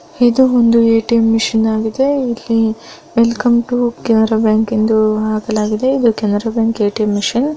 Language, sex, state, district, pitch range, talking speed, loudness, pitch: Kannada, female, Karnataka, Bellary, 220-240 Hz, 135 wpm, -14 LUFS, 225 Hz